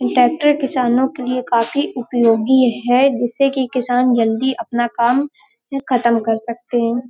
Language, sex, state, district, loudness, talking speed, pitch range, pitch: Hindi, female, Uttar Pradesh, Hamirpur, -17 LUFS, 145 wpm, 235-265 Hz, 245 Hz